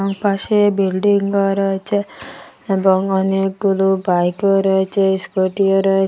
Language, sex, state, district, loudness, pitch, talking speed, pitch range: Bengali, female, Assam, Hailakandi, -16 LUFS, 195 Hz, 130 wpm, 190-200 Hz